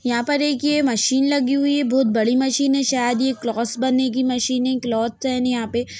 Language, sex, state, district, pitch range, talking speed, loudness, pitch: Hindi, female, Bihar, Gaya, 240-270 Hz, 230 wpm, -20 LUFS, 255 Hz